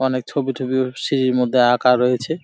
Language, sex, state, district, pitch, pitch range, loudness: Bengali, male, West Bengal, Jalpaiguri, 130 Hz, 125-130 Hz, -18 LUFS